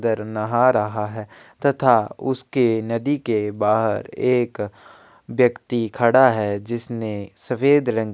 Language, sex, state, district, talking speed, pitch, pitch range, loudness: Hindi, male, Chhattisgarh, Kabirdham, 125 wpm, 115 Hz, 105-125 Hz, -20 LUFS